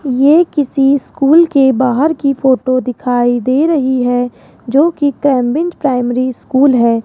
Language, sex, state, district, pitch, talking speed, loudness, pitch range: Hindi, female, Rajasthan, Jaipur, 265 Hz, 145 wpm, -12 LUFS, 250-285 Hz